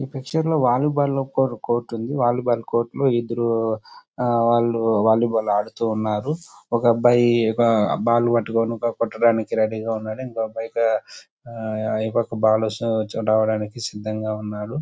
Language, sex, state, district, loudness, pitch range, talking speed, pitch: Telugu, male, Andhra Pradesh, Chittoor, -21 LUFS, 110-120 Hz, 140 wpm, 115 Hz